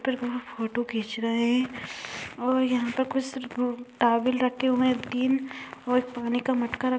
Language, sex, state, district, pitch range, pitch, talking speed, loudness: Hindi, female, Bihar, Sitamarhi, 240-255 Hz, 250 Hz, 180 wpm, -27 LUFS